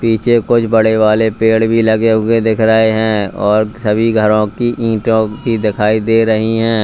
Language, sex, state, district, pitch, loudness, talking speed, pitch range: Hindi, male, Uttar Pradesh, Lalitpur, 110 Hz, -13 LUFS, 175 wpm, 110-115 Hz